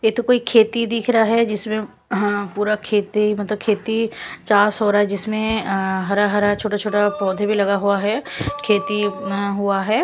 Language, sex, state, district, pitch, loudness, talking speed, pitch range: Hindi, female, Punjab, Kapurthala, 210 Hz, -19 LUFS, 160 wpm, 200-220 Hz